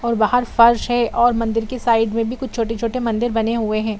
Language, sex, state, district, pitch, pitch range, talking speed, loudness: Hindi, female, Bihar, Saran, 230 Hz, 225-240 Hz, 240 wpm, -18 LUFS